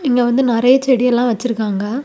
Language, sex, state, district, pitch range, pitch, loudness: Tamil, female, Tamil Nadu, Kanyakumari, 235-260 Hz, 245 Hz, -15 LUFS